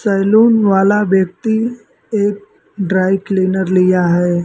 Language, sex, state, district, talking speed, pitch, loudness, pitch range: Hindi, male, Uttar Pradesh, Lucknow, 110 wpm, 195 Hz, -14 LUFS, 185-210 Hz